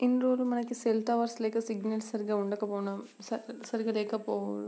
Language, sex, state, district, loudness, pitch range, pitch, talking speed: Telugu, female, Andhra Pradesh, Srikakulam, -32 LUFS, 210-235 Hz, 225 Hz, 140 wpm